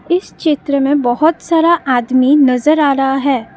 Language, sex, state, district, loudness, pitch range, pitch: Hindi, female, Assam, Kamrup Metropolitan, -13 LUFS, 265-310 Hz, 280 Hz